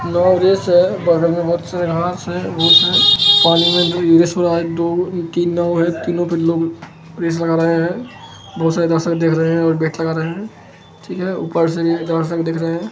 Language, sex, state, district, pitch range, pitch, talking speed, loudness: Hindi, male, Bihar, Begusarai, 165-175 Hz, 170 Hz, 175 wpm, -15 LUFS